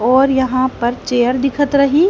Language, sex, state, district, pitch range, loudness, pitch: Hindi, female, Haryana, Jhajjar, 250-275 Hz, -15 LUFS, 260 Hz